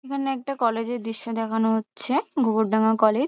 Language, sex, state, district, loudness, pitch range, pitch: Bengali, female, West Bengal, North 24 Parganas, -24 LUFS, 225-265 Hz, 230 Hz